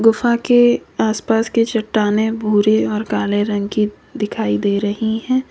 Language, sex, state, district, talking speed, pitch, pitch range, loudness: Hindi, female, Uttar Pradesh, Lalitpur, 165 wpm, 220 Hz, 210-230 Hz, -17 LUFS